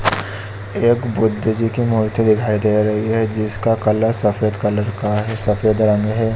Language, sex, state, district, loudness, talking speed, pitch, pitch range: Hindi, male, Chhattisgarh, Bilaspur, -18 LUFS, 170 wpm, 110 Hz, 105-110 Hz